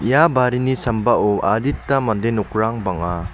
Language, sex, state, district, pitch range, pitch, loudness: Garo, male, Meghalaya, West Garo Hills, 105-130 Hz, 115 Hz, -18 LUFS